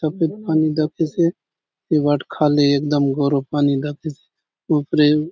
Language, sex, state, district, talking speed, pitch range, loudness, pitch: Halbi, male, Chhattisgarh, Bastar, 135 wpm, 145-155 Hz, -19 LUFS, 150 Hz